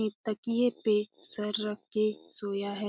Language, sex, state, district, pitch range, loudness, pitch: Hindi, female, Bihar, Lakhisarai, 210-215 Hz, -32 LUFS, 210 Hz